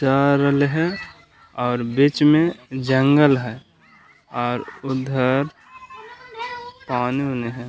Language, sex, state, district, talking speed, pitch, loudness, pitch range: Magahi, male, Bihar, Gaya, 80 wpm, 140 Hz, -20 LUFS, 125-160 Hz